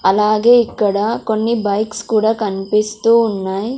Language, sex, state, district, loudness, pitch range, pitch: Telugu, female, Andhra Pradesh, Sri Satya Sai, -15 LUFS, 205-225 Hz, 215 Hz